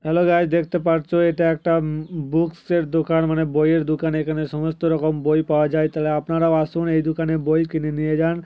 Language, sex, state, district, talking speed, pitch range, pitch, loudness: Bengali, male, West Bengal, Paschim Medinipur, 205 wpm, 155-165 Hz, 160 Hz, -20 LUFS